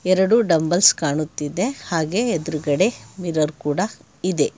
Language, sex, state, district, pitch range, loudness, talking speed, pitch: Kannada, male, Karnataka, Bangalore, 155-190 Hz, -20 LUFS, 105 wpm, 170 Hz